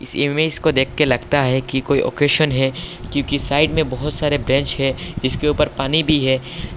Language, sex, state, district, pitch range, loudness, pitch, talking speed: Hindi, male, Assam, Hailakandi, 135-150 Hz, -18 LUFS, 145 Hz, 185 wpm